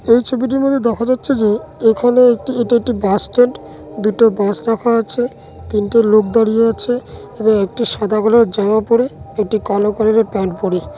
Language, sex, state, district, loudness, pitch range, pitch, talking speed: Bengali, male, West Bengal, Dakshin Dinajpur, -15 LUFS, 210-240 Hz, 225 Hz, 175 wpm